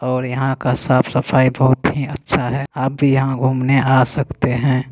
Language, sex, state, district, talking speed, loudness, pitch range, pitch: Hindi, male, Bihar, Begusarai, 205 wpm, -17 LUFS, 130-135 Hz, 130 Hz